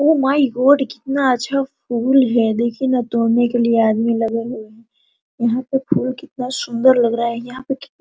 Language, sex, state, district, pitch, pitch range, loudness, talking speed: Hindi, female, Jharkhand, Sahebganj, 245 Hz, 235-270 Hz, -18 LUFS, 195 wpm